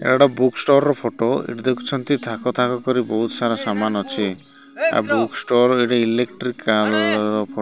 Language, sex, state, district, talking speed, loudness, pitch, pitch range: Odia, male, Odisha, Malkangiri, 190 wpm, -19 LUFS, 120 Hz, 110-125 Hz